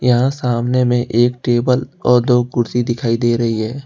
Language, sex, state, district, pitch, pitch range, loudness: Hindi, male, Jharkhand, Ranchi, 120 Hz, 120-125 Hz, -16 LUFS